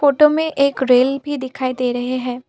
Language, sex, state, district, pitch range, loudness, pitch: Hindi, female, Assam, Kamrup Metropolitan, 255-285 Hz, -17 LUFS, 265 Hz